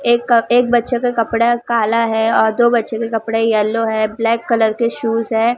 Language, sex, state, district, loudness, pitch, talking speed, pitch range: Hindi, female, Maharashtra, Mumbai Suburban, -16 LUFS, 230 Hz, 215 wpm, 225-235 Hz